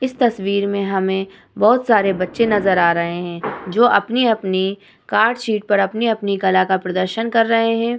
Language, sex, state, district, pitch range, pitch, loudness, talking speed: Hindi, female, Uttar Pradesh, Muzaffarnagar, 190-230 Hz, 200 Hz, -17 LUFS, 175 wpm